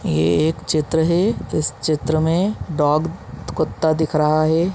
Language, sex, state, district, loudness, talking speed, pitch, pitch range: Hindi, male, Chhattisgarh, Balrampur, -19 LUFS, 150 wpm, 155 Hz, 155-165 Hz